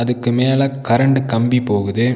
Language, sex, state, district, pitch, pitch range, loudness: Tamil, male, Tamil Nadu, Nilgiris, 125 Hz, 115-135 Hz, -16 LUFS